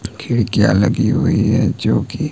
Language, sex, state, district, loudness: Hindi, male, Himachal Pradesh, Shimla, -16 LUFS